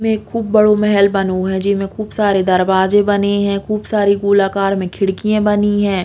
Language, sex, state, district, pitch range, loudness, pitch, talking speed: Bundeli, female, Uttar Pradesh, Hamirpur, 195-210 Hz, -15 LUFS, 200 Hz, 200 wpm